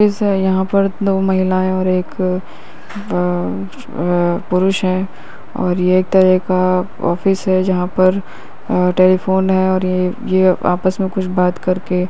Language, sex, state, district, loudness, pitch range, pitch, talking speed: Hindi, male, Uttar Pradesh, Hamirpur, -16 LUFS, 180-190 Hz, 185 Hz, 145 wpm